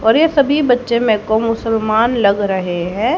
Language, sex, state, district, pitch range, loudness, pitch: Hindi, female, Haryana, Jhajjar, 205-240 Hz, -15 LUFS, 225 Hz